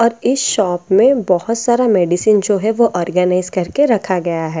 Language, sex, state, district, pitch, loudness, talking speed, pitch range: Hindi, female, Bihar, Katihar, 195 Hz, -15 LUFS, 210 wpm, 180-230 Hz